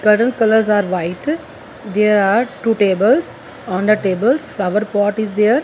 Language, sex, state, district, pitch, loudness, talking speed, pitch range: English, female, Punjab, Fazilka, 210 Hz, -16 LUFS, 160 wpm, 205-230 Hz